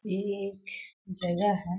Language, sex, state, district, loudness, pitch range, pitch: Hindi, female, Chhattisgarh, Balrampur, -31 LUFS, 185-200 Hz, 195 Hz